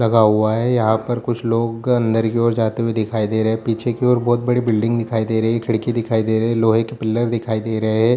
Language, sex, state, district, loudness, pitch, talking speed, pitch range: Hindi, male, Bihar, Jamui, -18 LUFS, 115 Hz, 250 wpm, 110-120 Hz